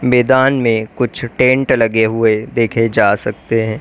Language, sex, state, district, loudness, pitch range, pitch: Hindi, female, Uttar Pradesh, Lalitpur, -14 LUFS, 110-125 Hz, 115 Hz